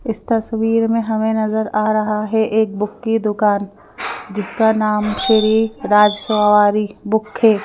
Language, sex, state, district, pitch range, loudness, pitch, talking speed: Hindi, female, Madhya Pradesh, Bhopal, 210-220 Hz, -17 LUFS, 215 Hz, 150 wpm